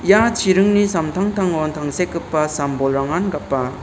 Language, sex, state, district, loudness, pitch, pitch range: Garo, male, Meghalaya, South Garo Hills, -18 LUFS, 165 Hz, 145-195 Hz